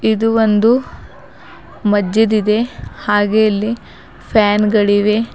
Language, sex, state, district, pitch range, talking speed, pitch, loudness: Kannada, female, Karnataka, Bidar, 210-225 Hz, 90 wpm, 215 Hz, -14 LUFS